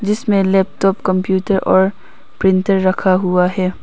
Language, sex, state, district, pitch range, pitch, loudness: Hindi, female, Arunachal Pradesh, Papum Pare, 185-200 Hz, 190 Hz, -15 LUFS